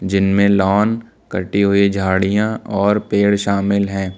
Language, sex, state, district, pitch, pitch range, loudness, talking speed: Hindi, male, Uttar Pradesh, Lucknow, 100 Hz, 95-100 Hz, -16 LUFS, 130 wpm